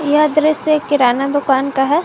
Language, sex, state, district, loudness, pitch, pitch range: Hindi, female, Jharkhand, Garhwa, -14 LUFS, 290 Hz, 270-305 Hz